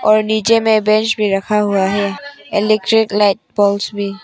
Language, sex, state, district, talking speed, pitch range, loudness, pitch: Hindi, female, Arunachal Pradesh, Papum Pare, 185 wpm, 200-220 Hz, -15 LUFS, 210 Hz